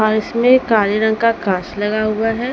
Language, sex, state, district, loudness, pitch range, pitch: Hindi, female, Chhattisgarh, Raipur, -16 LUFS, 215-230 Hz, 220 Hz